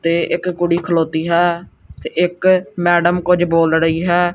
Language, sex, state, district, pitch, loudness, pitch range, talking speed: Punjabi, male, Punjab, Kapurthala, 175 Hz, -16 LUFS, 170-175 Hz, 165 wpm